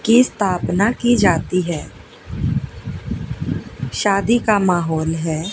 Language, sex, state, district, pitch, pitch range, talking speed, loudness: Hindi, female, Haryana, Jhajjar, 195 Hz, 165-225 Hz, 95 wpm, -19 LUFS